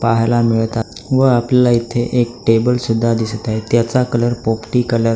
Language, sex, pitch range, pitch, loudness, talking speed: Marathi, male, 115-125 Hz, 120 Hz, -16 LUFS, 175 wpm